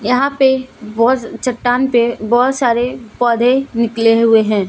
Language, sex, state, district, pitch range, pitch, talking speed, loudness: Hindi, female, Jharkhand, Deoghar, 230-255 Hz, 240 Hz, 140 wpm, -14 LUFS